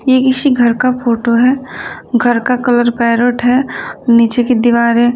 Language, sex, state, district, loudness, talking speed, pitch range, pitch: Hindi, female, Bihar, Kaimur, -12 LUFS, 165 wpm, 235-250 Hz, 245 Hz